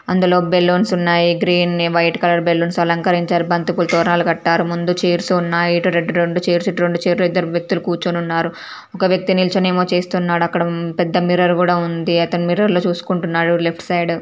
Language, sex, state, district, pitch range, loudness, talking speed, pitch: Telugu, female, Telangana, Karimnagar, 170-180 Hz, -16 LUFS, 175 wpm, 175 Hz